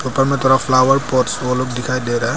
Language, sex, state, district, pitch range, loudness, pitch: Hindi, male, Arunachal Pradesh, Papum Pare, 125-135 Hz, -16 LUFS, 130 Hz